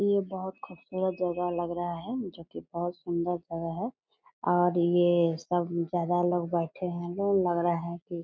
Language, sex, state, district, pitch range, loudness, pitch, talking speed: Hindi, female, Bihar, Purnia, 170-185 Hz, -30 LUFS, 175 Hz, 190 wpm